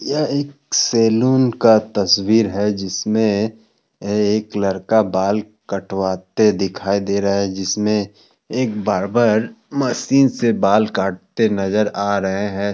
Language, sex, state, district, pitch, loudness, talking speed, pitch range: Hindi, male, Bihar, Kishanganj, 105 Hz, -18 LUFS, 120 wpm, 100-115 Hz